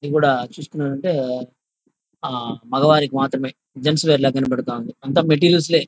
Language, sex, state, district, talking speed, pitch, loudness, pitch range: Telugu, male, Andhra Pradesh, Chittoor, 155 wpm, 140 Hz, -19 LUFS, 130-155 Hz